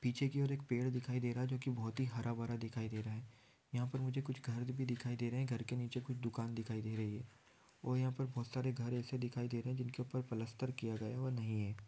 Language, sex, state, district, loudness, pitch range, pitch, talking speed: Hindi, male, West Bengal, Jhargram, -41 LUFS, 115-130 Hz, 120 Hz, 285 wpm